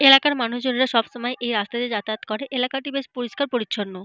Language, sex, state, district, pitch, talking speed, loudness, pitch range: Bengali, female, Jharkhand, Jamtara, 245 Hz, 175 wpm, -23 LUFS, 220-270 Hz